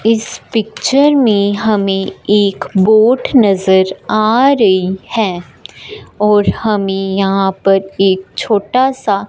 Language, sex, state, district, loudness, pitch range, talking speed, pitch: Hindi, female, Punjab, Fazilka, -13 LUFS, 195-225 Hz, 110 wpm, 205 Hz